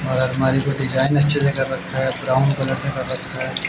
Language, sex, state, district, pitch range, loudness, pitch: Hindi, male, Haryana, Jhajjar, 130-140 Hz, -19 LUFS, 135 Hz